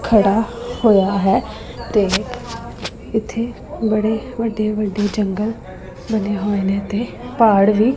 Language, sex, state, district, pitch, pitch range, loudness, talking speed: Punjabi, female, Punjab, Pathankot, 215 Hz, 205-230 Hz, -18 LUFS, 115 wpm